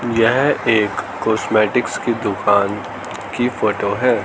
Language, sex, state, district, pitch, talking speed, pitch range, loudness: Hindi, male, Haryana, Charkhi Dadri, 120 Hz, 115 wpm, 110-125 Hz, -18 LUFS